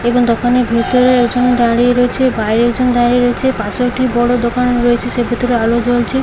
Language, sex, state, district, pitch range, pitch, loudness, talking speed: Bengali, female, West Bengal, Paschim Medinipur, 240-250 Hz, 245 Hz, -13 LUFS, 195 wpm